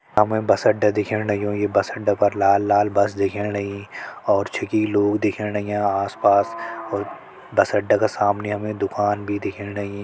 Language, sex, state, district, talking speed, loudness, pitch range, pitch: Hindi, male, Uttarakhand, Tehri Garhwal, 175 wpm, -21 LUFS, 100-105 Hz, 105 Hz